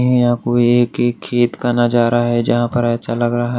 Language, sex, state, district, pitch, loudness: Hindi, male, Maharashtra, Washim, 120 Hz, -16 LUFS